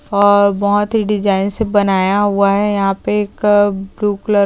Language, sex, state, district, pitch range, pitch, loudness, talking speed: Hindi, female, Maharashtra, Chandrapur, 200-205 Hz, 205 Hz, -14 LUFS, 190 wpm